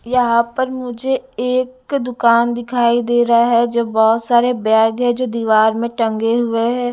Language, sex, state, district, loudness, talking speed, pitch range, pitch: Hindi, female, Punjab, Pathankot, -16 LUFS, 175 wpm, 230-250 Hz, 240 Hz